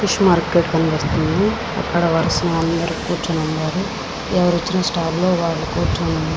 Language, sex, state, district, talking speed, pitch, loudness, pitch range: Telugu, female, Andhra Pradesh, Srikakulam, 150 wpm, 170 Hz, -19 LUFS, 165-185 Hz